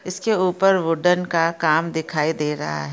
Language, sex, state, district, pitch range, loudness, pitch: Hindi, female, Chhattisgarh, Sukma, 155-185 Hz, -20 LUFS, 165 Hz